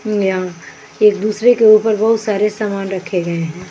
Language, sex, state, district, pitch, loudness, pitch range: Hindi, female, Bihar, Kaimur, 210 Hz, -15 LUFS, 185-215 Hz